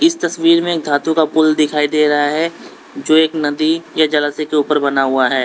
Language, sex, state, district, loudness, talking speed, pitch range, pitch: Hindi, male, Uttar Pradesh, Lalitpur, -15 LUFS, 230 wpm, 145-160 Hz, 155 Hz